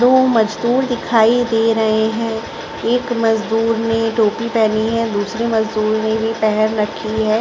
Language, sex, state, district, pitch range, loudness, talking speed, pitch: Hindi, female, Chhattisgarh, Raigarh, 220-230 Hz, -16 LUFS, 155 wpm, 225 Hz